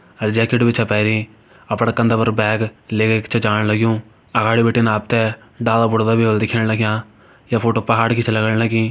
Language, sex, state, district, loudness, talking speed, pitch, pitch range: Hindi, male, Uttarakhand, Tehri Garhwal, -17 LUFS, 200 wpm, 110 Hz, 110-115 Hz